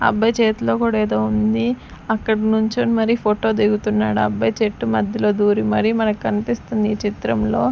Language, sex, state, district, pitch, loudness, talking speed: Telugu, female, Andhra Pradesh, Sri Satya Sai, 210 Hz, -19 LUFS, 165 wpm